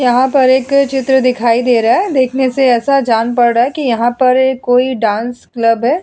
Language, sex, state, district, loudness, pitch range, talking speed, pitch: Hindi, female, Uttar Pradesh, Etah, -12 LUFS, 240-265 Hz, 220 wpm, 255 Hz